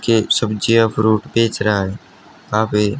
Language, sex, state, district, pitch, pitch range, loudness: Hindi, male, Haryana, Charkhi Dadri, 110 Hz, 105-115 Hz, -17 LUFS